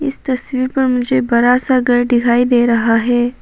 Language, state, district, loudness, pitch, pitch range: Hindi, Arunachal Pradesh, Papum Pare, -14 LUFS, 245 Hz, 240-255 Hz